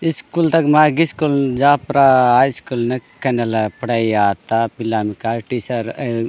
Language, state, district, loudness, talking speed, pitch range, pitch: Gondi, Chhattisgarh, Sukma, -17 LUFS, 155 wpm, 115-145 Hz, 125 Hz